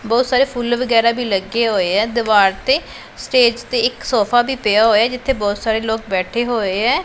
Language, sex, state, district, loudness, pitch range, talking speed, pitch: Punjabi, female, Punjab, Pathankot, -16 LUFS, 215-245 Hz, 205 wpm, 235 Hz